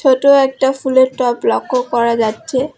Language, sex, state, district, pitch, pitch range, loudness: Bengali, female, West Bengal, Alipurduar, 260 Hz, 240-265 Hz, -14 LUFS